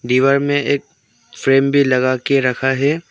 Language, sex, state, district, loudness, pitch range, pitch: Hindi, male, Arunachal Pradesh, Longding, -16 LUFS, 130-140 Hz, 135 Hz